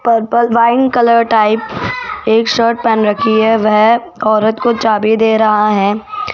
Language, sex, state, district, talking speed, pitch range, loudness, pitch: Hindi, female, Rajasthan, Jaipur, 150 wpm, 215-235 Hz, -12 LUFS, 225 Hz